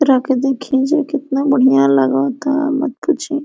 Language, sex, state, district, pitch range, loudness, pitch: Hindi, female, Jharkhand, Sahebganj, 260-290 Hz, -15 LUFS, 275 Hz